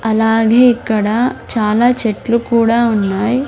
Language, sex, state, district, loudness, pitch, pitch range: Telugu, female, Andhra Pradesh, Sri Satya Sai, -13 LUFS, 230 Hz, 220-240 Hz